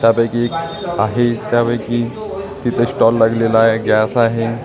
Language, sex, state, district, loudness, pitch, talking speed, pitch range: Marathi, male, Maharashtra, Gondia, -16 LUFS, 120 Hz, 130 wpm, 115-120 Hz